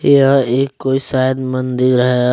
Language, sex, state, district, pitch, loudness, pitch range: Hindi, male, Jharkhand, Deoghar, 130 Hz, -15 LUFS, 125-135 Hz